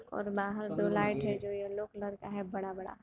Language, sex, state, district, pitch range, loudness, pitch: Hindi, female, Uttar Pradesh, Gorakhpur, 200-205 Hz, -36 LUFS, 200 Hz